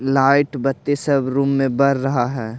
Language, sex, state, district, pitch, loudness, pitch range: Hindi, male, Bihar, Patna, 135 Hz, -18 LUFS, 130-140 Hz